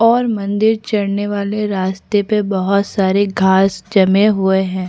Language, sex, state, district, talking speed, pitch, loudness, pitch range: Hindi, female, Chhattisgarh, Bastar, 145 wpm, 200 Hz, -15 LUFS, 190-210 Hz